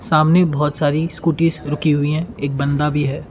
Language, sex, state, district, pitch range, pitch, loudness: Hindi, male, Karnataka, Bangalore, 145-160 Hz, 150 Hz, -18 LUFS